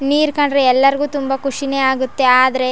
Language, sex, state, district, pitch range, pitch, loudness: Kannada, female, Karnataka, Chamarajanagar, 260-280 Hz, 275 Hz, -15 LUFS